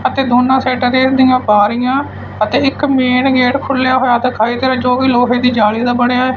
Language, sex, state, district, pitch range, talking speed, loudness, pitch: Punjabi, male, Punjab, Fazilka, 245-260 Hz, 205 wpm, -12 LUFS, 255 Hz